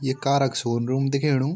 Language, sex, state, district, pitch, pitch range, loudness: Garhwali, male, Uttarakhand, Tehri Garhwal, 135 Hz, 130-140 Hz, -23 LUFS